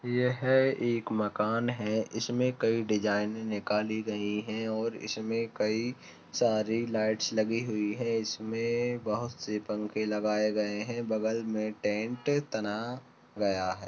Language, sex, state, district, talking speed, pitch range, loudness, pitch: Hindi, male, Chhattisgarh, Rajnandgaon, 140 wpm, 105-115 Hz, -31 LUFS, 110 Hz